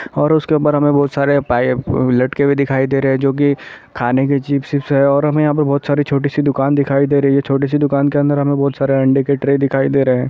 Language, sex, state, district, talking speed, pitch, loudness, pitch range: Hindi, male, Chhattisgarh, Sarguja, 275 wpm, 140 Hz, -15 LUFS, 135-145 Hz